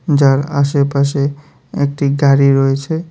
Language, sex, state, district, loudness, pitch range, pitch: Bengali, male, Tripura, West Tripura, -14 LUFS, 140-145 Hz, 140 Hz